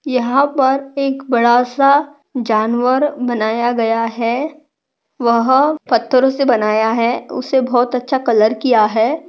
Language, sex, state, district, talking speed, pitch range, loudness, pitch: Hindi, female, Maharashtra, Nagpur, 125 wpm, 235-275 Hz, -15 LUFS, 250 Hz